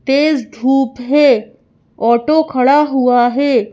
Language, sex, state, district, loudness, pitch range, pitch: Hindi, female, Madhya Pradesh, Bhopal, -13 LUFS, 245-285 Hz, 265 Hz